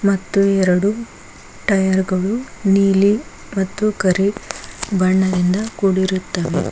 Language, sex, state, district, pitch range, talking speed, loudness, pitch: Kannada, female, Karnataka, Koppal, 185-200 Hz, 80 wpm, -18 LUFS, 195 Hz